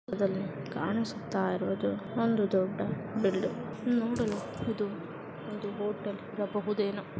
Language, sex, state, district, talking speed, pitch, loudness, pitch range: Kannada, female, Karnataka, Mysore, 85 wpm, 205 Hz, -32 LUFS, 190-220 Hz